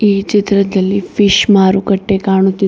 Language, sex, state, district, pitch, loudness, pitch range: Kannada, female, Karnataka, Bidar, 195 Hz, -12 LUFS, 190-200 Hz